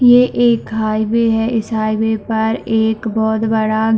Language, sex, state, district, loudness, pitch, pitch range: Hindi, female, Chhattisgarh, Bilaspur, -16 LUFS, 220 Hz, 220-230 Hz